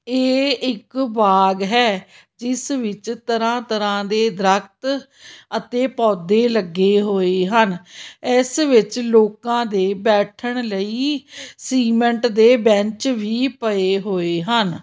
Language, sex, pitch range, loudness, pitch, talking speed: Punjabi, female, 200-245 Hz, -18 LUFS, 225 Hz, 115 wpm